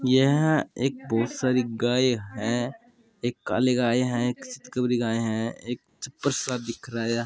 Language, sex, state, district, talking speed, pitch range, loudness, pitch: Hindi, male, Rajasthan, Churu, 165 wpm, 115-130 Hz, -26 LUFS, 125 Hz